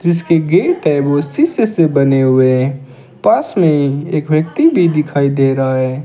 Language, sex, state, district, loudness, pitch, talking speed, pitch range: Hindi, male, Rajasthan, Bikaner, -13 LUFS, 145 Hz, 180 wpm, 135-170 Hz